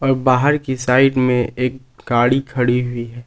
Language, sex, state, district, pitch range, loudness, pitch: Hindi, male, Jharkhand, Palamu, 120-135 Hz, -17 LUFS, 125 Hz